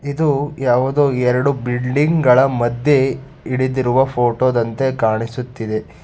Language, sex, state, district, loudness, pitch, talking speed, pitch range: Kannada, male, Karnataka, Bangalore, -17 LUFS, 130 Hz, 100 wpm, 120-135 Hz